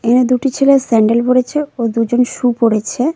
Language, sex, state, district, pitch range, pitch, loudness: Bengali, female, West Bengal, Cooch Behar, 230-270 Hz, 245 Hz, -14 LUFS